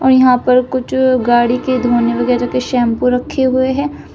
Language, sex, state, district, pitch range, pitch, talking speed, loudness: Hindi, female, Uttar Pradesh, Shamli, 245-260 Hz, 250 Hz, 175 wpm, -14 LUFS